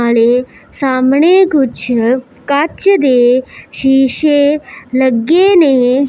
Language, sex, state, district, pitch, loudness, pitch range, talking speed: Punjabi, female, Punjab, Pathankot, 265 Hz, -11 LUFS, 255-295 Hz, 80 wpm